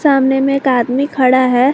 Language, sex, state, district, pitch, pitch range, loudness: Hindi, female, Jharkhand, Garhwa, 265 Hz, 255-275 Hz, -13 LUFS